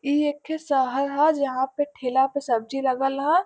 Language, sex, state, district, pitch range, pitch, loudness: Bhojpuri, female, Uttar Pradesh, Varanasi, 265-290 Hz, 275 Hz, -24 LUFS